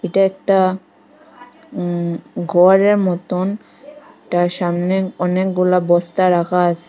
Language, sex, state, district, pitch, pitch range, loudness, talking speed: Bengali, female, Assam, Hailakandi, 185 Hz, 175-195 Hz, -17 LUFS, 95 wpm